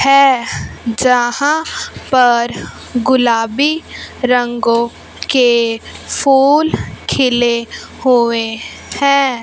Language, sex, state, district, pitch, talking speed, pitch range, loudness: Hindi, female, Punjab, Fazilka, 250 Hz, 65 wpm, 235-275 Hz, -14 LUFS